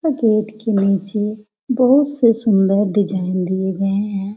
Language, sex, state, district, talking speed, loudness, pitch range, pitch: Hindi, female, Bihar, Jamui, 150 wpm, -17 LUFS, 195-225 Hz, 210 Hz